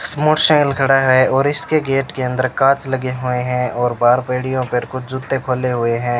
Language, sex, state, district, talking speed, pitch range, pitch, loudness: Hindi, male, Rajasthan, Bikaner, 205 wpm, 125-135 Hz, 130 Hz, -16 LUFS